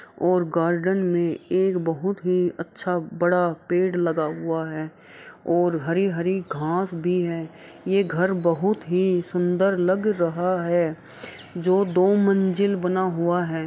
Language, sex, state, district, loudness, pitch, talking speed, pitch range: Hindi, female, Bihar, Araria, -23 LUFS, 175 Hz, 140 wpm, 170-185 Hz